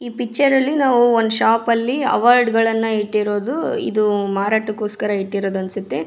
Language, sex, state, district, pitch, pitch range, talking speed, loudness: Kannada, female, Karnataka, Raichur, 225 Hz, 210-245 Hz, 130 wpm, -18 LUFS